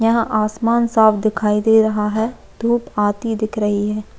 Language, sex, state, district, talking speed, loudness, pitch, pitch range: Hindi, female, Chhattisgarh, Jashpur, 170 wpm, -17 LUFS, 220 Hz, 210-225 Hz